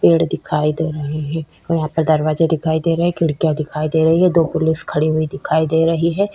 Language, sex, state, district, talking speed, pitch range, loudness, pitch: Hindi, female, Chhattisgarh, Kabirdham, 235 wpm, 155-165 Hz, -17 LUFS, 160 Hz